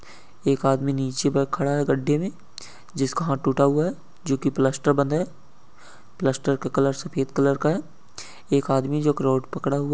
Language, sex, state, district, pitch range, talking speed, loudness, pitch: Hindi, male, Uttarakhand, Uttarkashi, 135-150 Hz, 195 wpm, -23 LUFS, 140 Hz